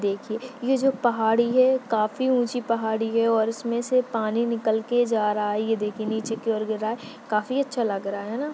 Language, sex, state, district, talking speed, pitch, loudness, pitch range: Hindi, male, Maharashtra, Dhule, 220 wpm, 230 Hz, -24 LUFS, 220-245 Hz